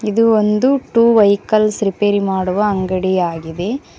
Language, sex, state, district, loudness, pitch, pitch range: Kannada, female, Karnataka, Koppal, -15 LUFS, 205 Hz, 190-220 Hz